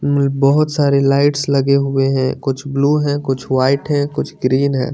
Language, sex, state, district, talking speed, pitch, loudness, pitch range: Hindi, male, Chandigarh, Chandigarh, 180 wpm, 140 Hz, -16 LUFS, 135-145 Hz